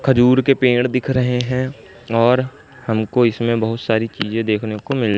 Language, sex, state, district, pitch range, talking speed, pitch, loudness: Hindi, male, Madhya Pradesh, Katni, 110-130 Hz, 175 wpm, 120 Hz, -18 LUFS